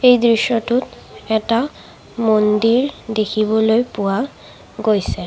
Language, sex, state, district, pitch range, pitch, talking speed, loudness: Assamese, female, Assam, Sonitpur, 215-240 Hz, 225 Hz, 80 wpm, -17 LUFS